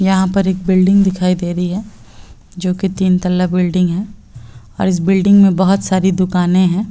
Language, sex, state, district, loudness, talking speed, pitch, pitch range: Hindi, female, Bihar, Purnia, -14 LUFS, 190 wpm, 185 Hz, 180-190 Hz